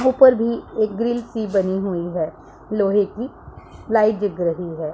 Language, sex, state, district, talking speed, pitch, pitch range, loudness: Hindi, female, Punjab, Pathankot, 170 wpm, 215 Hz, 190-235 Hz, -20 LUFS